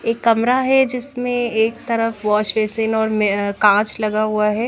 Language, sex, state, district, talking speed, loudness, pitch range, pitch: Hindi, female, Bihar, Katihar, 180 wpm, -18 LUFS, 215-235 Hz, 220 Hz